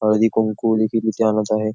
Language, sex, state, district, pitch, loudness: Marathi, male, Maharashtra, Nagpur, 110 Hz, -19 LUFS